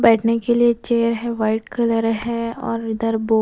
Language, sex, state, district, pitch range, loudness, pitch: Hindi, female, Bihar, West Champaran, 225-235 Hz, -20 LUFS, 230 Hz